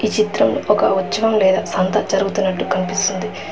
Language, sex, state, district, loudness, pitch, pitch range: Telugu, female, Telangana, Hyderabad, -17 LUFS, 200 Hz, 190-215 Hz